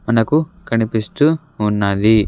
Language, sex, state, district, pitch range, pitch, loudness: Telugu, male, Andhra Pradesh, Sri Satya Sai, 110-150 Hz, 115 Hz, -17 LUFS